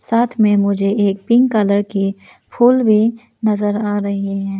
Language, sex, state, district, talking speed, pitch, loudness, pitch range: Hindi, female, Arunachal Pradesh, Lower Dibang Valley, 170 wpm, 205 Hz, -16 LUFS, 200-225 Hz